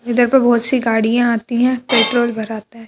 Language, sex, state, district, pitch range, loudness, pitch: Hindi, female, Madhya Pradesh, Bhopal, 225-245 Hz, -15 LUFS, 235 Hz